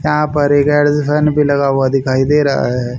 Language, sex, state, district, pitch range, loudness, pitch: Hindi, male, Haryana, Charkhi Dadri, 135-150 Hz, -13 LUFS, 145 Hz